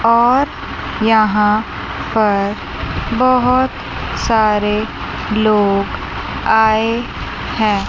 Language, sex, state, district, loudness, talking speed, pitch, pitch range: Hindi, female, Chandigarh, Chandigarh, -16 LUFS, 60 wpm, 220 Hz, 210-230 Hz